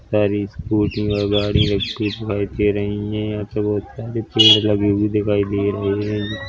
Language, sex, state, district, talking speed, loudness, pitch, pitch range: Hindi, male, Chhattisgarh, Korba, 185 wpm, -19 LUFS, 105 Hz, 100-105 Hz